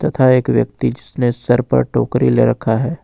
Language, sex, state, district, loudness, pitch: Hindi, male, Jharkhand, Ranchi, -16 LUFS, 120 Hz